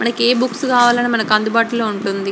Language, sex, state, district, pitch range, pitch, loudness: Telugu, female, Andhra Pradesh, Srikakulam, 215-245 Hz, 235 Hz, -16 LUFS